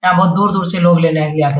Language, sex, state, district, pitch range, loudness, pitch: Hindi, male, Bihar, Jahanabad, 155-190 Hz, -13 LUFS, 175 Hz